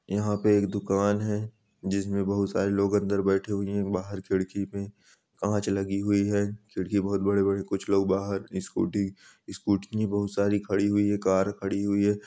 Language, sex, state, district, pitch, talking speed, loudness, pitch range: Hindi, male, Karnataka, Bijapur, 100 Hz, 180 wpm, -27 LUFS, 100-105 Hz